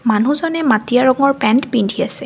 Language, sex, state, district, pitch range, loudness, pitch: Assamese, female, Assam, Kamrup Metropolitan, 220-275 Hz, -15 LUFS, 255 Hz